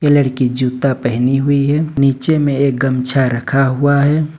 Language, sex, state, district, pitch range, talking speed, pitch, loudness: Hindi, male, Jharkhand, Ranchi, 130-145 Hz, 165 wpm, 135 Hz, -15 LUFS